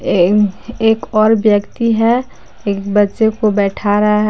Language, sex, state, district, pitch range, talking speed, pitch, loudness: Hindi, female, Jharkhand, Palamu, 205-225 Hz, 140 wpm, 210 Hz, -14 LUFS